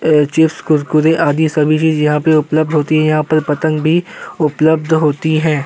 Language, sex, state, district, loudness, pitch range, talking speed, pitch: Hindi, male, Uttar Pradesh, Jyotiba Phule Nagar, -13 LUFS, 150-160 Hz, 180 wpm, 155 Hz